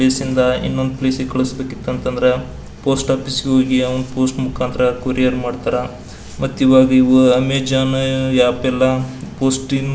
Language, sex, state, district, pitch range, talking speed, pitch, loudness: Kannada, male, Karnataka, Belgaum, 125-130 Hz, 140 wpm, 130 Hz, -17 LUFS